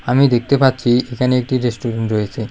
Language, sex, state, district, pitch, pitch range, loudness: Bengali, male, Tripura, South Tripura, 120 Hz, 115-130 Hz, -16 LUFS